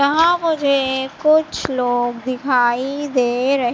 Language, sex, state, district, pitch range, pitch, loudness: Hindi, female, Madhya Pradesh, Katni, 250-290 Hz, 265 Hz, -18 LUFS